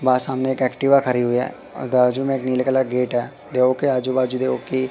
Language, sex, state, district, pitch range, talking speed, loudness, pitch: Hindi, male, Madhya Pradesh, Katni, 125-130 Hz, 270 wpm, -19 LUFS, 130 Hz